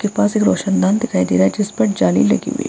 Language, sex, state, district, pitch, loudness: Hindi, female, Bihar, Vaishali, 185 Hz, -16 LUFS